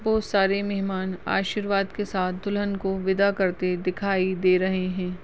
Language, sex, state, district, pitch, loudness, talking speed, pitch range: Hindi, female, Goa, North and South Goa, 190 Hz, -25 LUFS, 160 wpm, 185-200 Hz